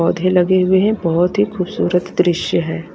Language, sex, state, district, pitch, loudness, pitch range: Hindi, female, Haryana, Rohtak, 180 Hz, -16 LUFS, 175-185 Hz